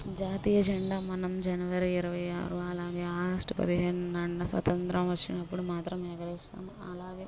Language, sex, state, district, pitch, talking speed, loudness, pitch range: Telugu, female, Andhra Pradesh, Guntur, 180 Hz, 115 wpm, -32 LUFS, 175-185 Hz